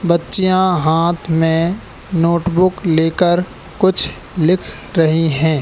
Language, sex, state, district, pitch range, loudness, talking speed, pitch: Hindi, male, Madhya Pradesh, Katni, 160-185 Hz, -15 LUFS, 105 wpm, 170 Hz